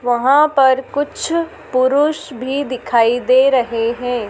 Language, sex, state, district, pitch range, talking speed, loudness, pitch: Hindi, female, Madhya Pradesh, Dhar, 245-285 Hz, 125 wpm, -16 LUFS, 255 Hz